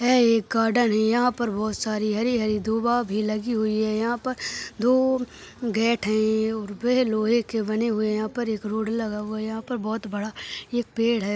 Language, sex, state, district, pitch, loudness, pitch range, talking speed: Hindi, female, Goa, North and South Goa, 220 Hz, -24 LUFS, 215-240 Hz, 210 wpm